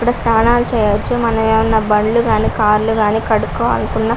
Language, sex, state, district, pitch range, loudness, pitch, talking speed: Telugu, female, Andhra Pradesh, Guntur, 215-230 Hz, -14 LUFS, 220 Hz, 170 wpm